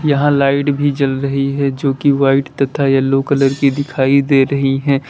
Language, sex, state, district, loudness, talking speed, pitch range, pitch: Hindi, male, Uttar Pradesh, Lalitpur, -14 LUFS, 200 wpm, 135-140 Hz, 140 Hz